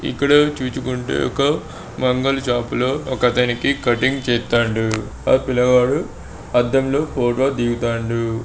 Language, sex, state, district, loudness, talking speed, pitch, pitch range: Telugu, male, Andhra Pradesh, Srikakulam, -19 LUFS, 100 wpm, 125 Hz, 120-135 Hz